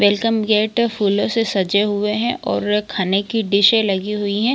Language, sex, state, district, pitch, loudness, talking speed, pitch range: Hindi, female, Chhattisgarh, Bilaspur, 210 Hz, -18 LUFS, 195 wpm, 200-225 Hz